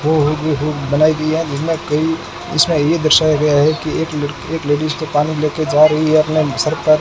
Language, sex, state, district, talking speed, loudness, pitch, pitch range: Hindi, male, Rajasthan, Bikaner, 215 wpm, -15 LUFS, 155 Hz, 150-155 Hz